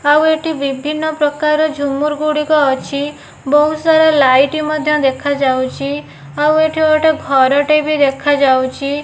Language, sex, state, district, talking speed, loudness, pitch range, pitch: Odia, female, Odisha, Nuapada, 120 wpm, -14 LUFS, 275-305 Hz, 295 Hz